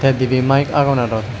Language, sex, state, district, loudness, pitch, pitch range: Chakma, male, Tripura, West Tripura, -16 LUFS, 130 Hz, 120-135 Hz